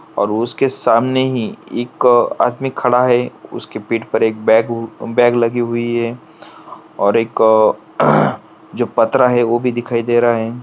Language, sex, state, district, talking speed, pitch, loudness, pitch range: Hindi, male, Maharashtra, Pune, 160 wpm, 120 Hz, -15 LUFS, 115-125 Hz